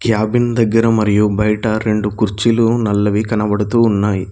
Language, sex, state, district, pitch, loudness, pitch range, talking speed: Telugu, male, Telangana, Mahabubabad, 110 Hz, -15 LUFS, 105-115 Hz, 125 wpm